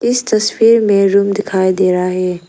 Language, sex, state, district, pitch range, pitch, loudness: Hindi, female, Arunachal Pradesh, Lower Dibang Valley, 185-215 Hz, 200 Hz, -13 LUFS